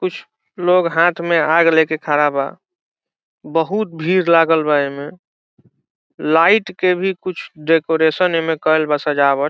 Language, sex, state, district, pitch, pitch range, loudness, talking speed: Bhojpuri, male, Bihar, Saran, 165 Hz, 155-180 Hz, -16 LUFS, 160 wpm